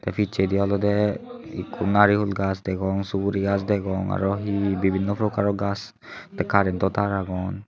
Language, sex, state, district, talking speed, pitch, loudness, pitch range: Chakma, male, Tripura, Unakoti, 155 wpm, 100 Hz, -23 LUFS, 95-100 Hz